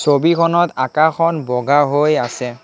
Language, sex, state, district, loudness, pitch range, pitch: Assamese, male, Assam, Kamrup Metropolitan, -15 LUFS, 130-165 Hz, 145 Hz